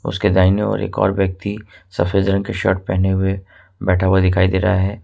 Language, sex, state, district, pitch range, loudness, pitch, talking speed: Hindi, male, Jharkhand, Ranchi, 95-100 Hz, -18 LUFS, 95 Hz, 215 wpm